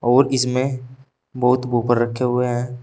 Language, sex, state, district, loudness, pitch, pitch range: Hindi, male, Uttar Pradesh, Shamli, -19 LUFS, 125 Hz, 120-130 Hz